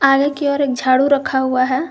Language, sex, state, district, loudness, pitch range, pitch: Hindi, female, Jharkhand, Garhwa, -16 LUFS, 260-285 Hz, 275 Hz